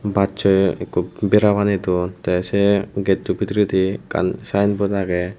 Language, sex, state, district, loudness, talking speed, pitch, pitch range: Chakma, male, Tripura, Unakoti, -19 LUFS, 120 wpm, 100 Hz, 95-100 Hz